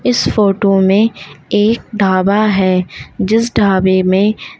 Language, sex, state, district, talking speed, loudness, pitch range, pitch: Hindi, female, Uttar Pradesh, Lalitpur, 115 wpm, -13 LUFS, 190-215 Hz, 200 Hz